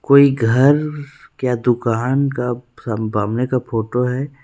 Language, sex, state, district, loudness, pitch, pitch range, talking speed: Hindi, male, Chhattisgarh, Rajnandgaon, -18 LUFS, 125 Hz, 115-140 Hz, 135 wpm